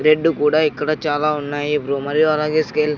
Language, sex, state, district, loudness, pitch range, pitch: Telugu, male, Andhra Pradesh, Sri Satya Sai, -18 LUFS, 145-155 Hz, 150 Hz